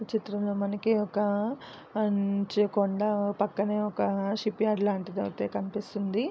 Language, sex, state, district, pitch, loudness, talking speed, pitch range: Telugu, female, Andhra Pradesh, Visakhapatnam, 205 Hz, -29 LUFS, 105 wpm, 200-210 Hz